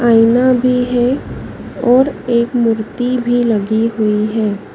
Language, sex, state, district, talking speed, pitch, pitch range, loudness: Hindi, female, Madhya Pradesh, Dhar, 125 wpm, 240 Hz, 220-250 Hz, -14 LUFS